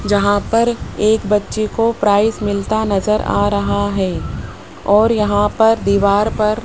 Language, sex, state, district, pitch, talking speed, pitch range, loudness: Hindi, female, Rajasthan, Jaipur, 210 Hz, 155 wpm, 200-215 Hz, -16 LUFS